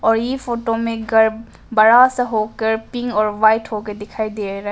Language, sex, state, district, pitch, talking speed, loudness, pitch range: Hindi, female, Arunachal Pradesh, Papum Pare, 220 Hz, 205 wpm, -17 LUFS, 215-230 Hz